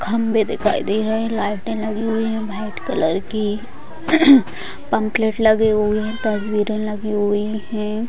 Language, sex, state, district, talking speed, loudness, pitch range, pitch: Hindi, female, Bihar, Vaishali, 150 wpm, -19 LUFS, 210-225 Hz, 215 Hz